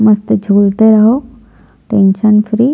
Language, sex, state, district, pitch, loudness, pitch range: Hindi, female, Chhattisgarh, Jashpur, 215 Hz, -10 LUFS, 210-225 Hz